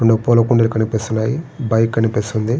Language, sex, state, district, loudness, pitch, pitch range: Telugu, male, Andhra Pradesh, Srikakulam, -17 LUFS, 115 Hz, 110-120 Hz